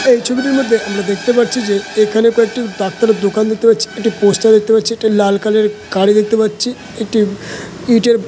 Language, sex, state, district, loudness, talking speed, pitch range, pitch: Bengali, male, West Bengal, Malda, -14 LUFS, 190 wpm, 210-230 Hz, 220 Hz